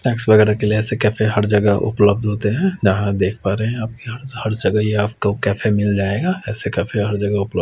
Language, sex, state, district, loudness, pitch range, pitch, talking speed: Hindi, male, Chandigarh, Chandigarh, -18 LUFS, 105-110 Hz, 105 Hz, 220 wpm